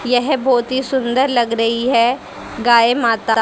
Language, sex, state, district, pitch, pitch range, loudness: Hindi, female, Haryana, Jhajjar, 245 Hz, 230-260 Hz, -15 LUFS